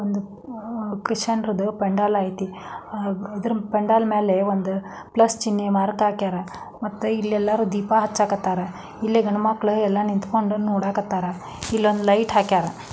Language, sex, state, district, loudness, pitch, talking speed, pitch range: Kannada, female, Karnataka, Dharwad, -22 LUFS, 205 Hz, 135 wpm, 200-220 Hz